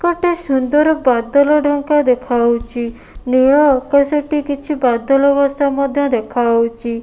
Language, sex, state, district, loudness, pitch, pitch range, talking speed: Odia, female, Odisha, Nuapada, -15 LUFS, 275 Hz, 240-290 Hz, 110 wpm